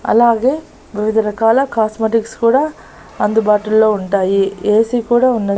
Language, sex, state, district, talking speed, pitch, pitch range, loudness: Telugu, female, Andhra Pradesh, Annamaya, 120 wpm, 220 Hz, 210-240 Hz, -14 LUFS